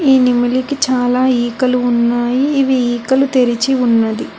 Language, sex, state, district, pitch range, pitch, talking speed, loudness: Telugu, female, Telangana, Hyderabad, 240-265 Hz, 250 Hz, 125 wpm, -14 LUFS